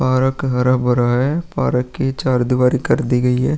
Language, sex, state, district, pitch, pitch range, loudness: Hindi, male, Uttar Pradesh, Muzaffarnagar, 130 Hz, 125-135 Hz, -17 LUFS